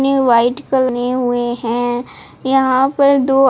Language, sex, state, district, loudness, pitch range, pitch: Hindi, female, Odisha, Sambalpur, -15 LUFS, 245-270 Hz, 255 Hz